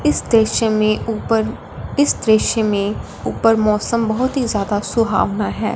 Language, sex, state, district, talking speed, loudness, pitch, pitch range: Hindi, female, Punjab, Fazilka, 145 wpm, -17 LUFS, 220 Hz, 210-230 Hz